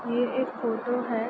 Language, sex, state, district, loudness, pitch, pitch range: Hindi, female, Uttar Pradesh, Ghazipur, -28 LUFS, 245 Hz, 235-245 Hz